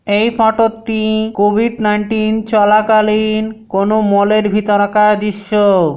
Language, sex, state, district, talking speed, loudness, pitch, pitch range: Bengali, male, West Bengal, Dakshin Dinajpur, 110 wpm, -13 LUFS, 215 Hz, 205-220 Hz